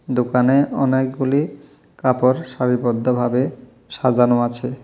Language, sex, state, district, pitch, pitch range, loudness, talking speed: Bengali, male, Tripura, South Tripura, 125 Hz, 125-135 Hz, -19 LUFS, 75 wpm